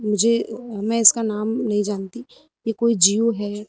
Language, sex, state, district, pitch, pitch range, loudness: Hindi, female, Uttar Pradesh, Lucknow, 225 Hz, 210-230 Hz, -19 LUFS